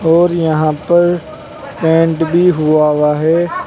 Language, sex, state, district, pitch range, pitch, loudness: Hindi, male, Uttar Pradesh, Saharanpur, 155-175 Hz, 160 Hz, -13 LUFS